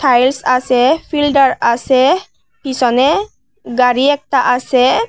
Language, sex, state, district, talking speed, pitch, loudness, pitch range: Bengali, female, Tripura, West Tripura, 95 wpm, 260 Hz, -13 LUFS, 250-290 Hz